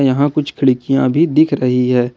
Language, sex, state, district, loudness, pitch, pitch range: Hindi, male, Jharkhand, Ranchi, -14 LUFS, 135 Hz, 125-145 Hz